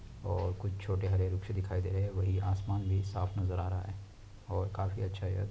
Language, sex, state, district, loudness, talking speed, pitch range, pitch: Hindi, male, Jharkhand, Jamtara, -35 LUFS, 205 wpm, 95-100 Hz, 95 Hz